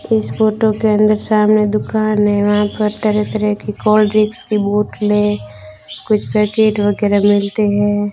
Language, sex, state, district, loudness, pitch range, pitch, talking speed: Hindi, female, Rajasthan, Bikaner, -15 LUFS, 205-215 Hz, 210 Hz, 150 wpm